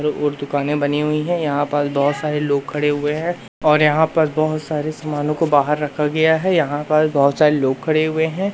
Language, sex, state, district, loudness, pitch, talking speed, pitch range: Hindi, male, Madhya Pradesh, Umaria, -18 LUFS, 150 Hz, 225 wpm, 145-155 Hz